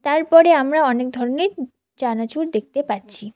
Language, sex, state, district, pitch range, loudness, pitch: Bengali, female, West Bengal, Cooch Behar, 230-310 Hz, -18 LUFS, 265 Hz